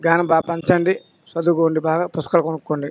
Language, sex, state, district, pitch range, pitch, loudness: Telugu, male, Andhra Pradesh, Krishna, 160-170 Hz, 165 Hz, -19 LUFS